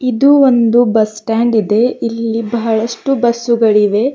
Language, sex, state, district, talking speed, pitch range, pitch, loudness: Kannada, female, Karnataka, Bidar, 115 wpm, 225-240 Hz, 230 Hz, -13 LUFS